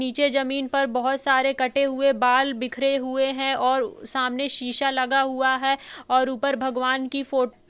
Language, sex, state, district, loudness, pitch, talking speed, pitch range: Hindi, female, Uttar Pradesh, Jalaun, -23 LUFS, 265 Hz, 180 wpm, 255-275 Hz